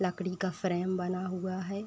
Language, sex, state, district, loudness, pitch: Hindi, female, Uttar Pradesh, Etah, -33 LUFS, 185 Hz